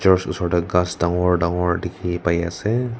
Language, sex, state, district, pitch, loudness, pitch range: Nagamese, male, Nagaland, Kohima, 90 Hz, -21 LUFS, 85-95 Hz